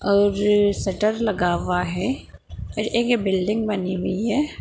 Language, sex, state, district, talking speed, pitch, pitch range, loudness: Hindi, female, Bihar, Jahanabad, 145 wpm, 205 Hz, 185-225 Hz, -22 LUFS